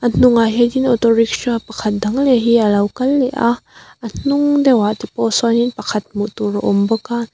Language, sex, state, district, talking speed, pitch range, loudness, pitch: Mizo, female, Mizoram, Aizawl, 220 wpm, 215-250 Hz, -16 LUFS, 235 Hz